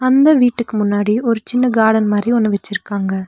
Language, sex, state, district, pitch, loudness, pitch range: Tamil, female, Tamil Nadu, Nilgiris, 220 Hz, -15 LUFS, 205-245 Hz